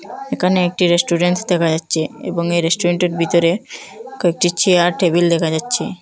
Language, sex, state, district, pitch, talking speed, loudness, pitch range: Bengali, female, Assam, Hailakandi, 175 Hz, 130 wpm, -16 LUFS, 170-180 Hz